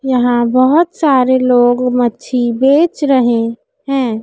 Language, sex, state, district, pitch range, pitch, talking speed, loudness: Hindi, female, Madhya Pradesh, Dhar, 245-270 Hz, 250 Hz, 115 wpm, -12 LUFS